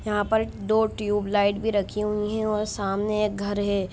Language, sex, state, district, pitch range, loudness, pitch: Hindi, female, Bihar, Sitamarhi, 205-215 Hz, -25 LUFS, 210 Hz